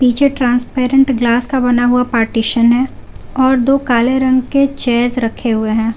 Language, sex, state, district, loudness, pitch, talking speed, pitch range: Hindi, female, Jharkhand, Garhwa, -13 LUFS, 250 Hz, 170 wpm, 235-260 Hz